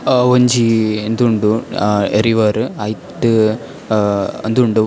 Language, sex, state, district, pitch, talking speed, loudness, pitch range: Tulu, male, Karnataka, Dakshina Kannada, 110 Hz, 125 wpm, -15 LUFS, 105-115 Hz